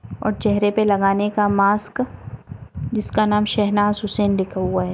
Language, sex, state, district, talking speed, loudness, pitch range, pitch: Hindi, female, Bihar, Jamui, 170 wpm, -19 LUFS, 200-210 Hz, 205 Hz